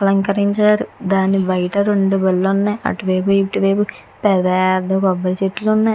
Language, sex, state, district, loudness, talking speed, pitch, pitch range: Telugu, female, Andhra Pradesh, Chittoor, -17 LUFS, 150 wpm, 195 Hz, 185-200 Hz